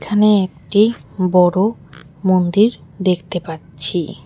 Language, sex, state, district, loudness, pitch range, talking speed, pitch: Bengali, female, West Bengal, Alipurduar, -17 LUFS, 160-200 Hz, 85 wpm, 185 Hz